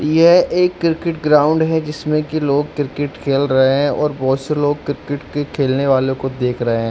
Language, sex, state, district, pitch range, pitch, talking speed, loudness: Hindi, male, Jharkhand, Jamtara, 135-155 Hz, 145 Hz, 210 wpm, -17 LUFS